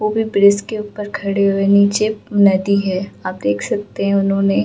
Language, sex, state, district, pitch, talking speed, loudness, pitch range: Hindi, female, Bihar, Gaya, 200 Hz, 205 wpm, -16 LUFS, 195-205 Hz